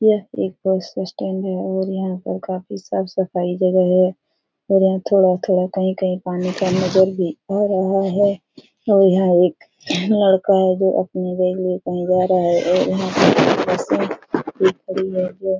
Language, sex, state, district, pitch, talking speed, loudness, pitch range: Hindi, female, Bihar, Supaul, 190 Hz, 170 wpm, -18 LUFS, 185-190 Hz